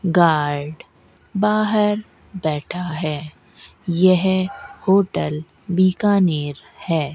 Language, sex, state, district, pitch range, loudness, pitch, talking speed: Hindi, female, Rajasthan, Bikaner, 155-200 Hz, -20 LUFS, 180 Hz, 65 wpm